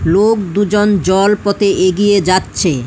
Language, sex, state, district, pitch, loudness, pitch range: Bengali, female, West Bengal, Alipurduar, 200 Hz, -13 LUFS, 185-205 Hz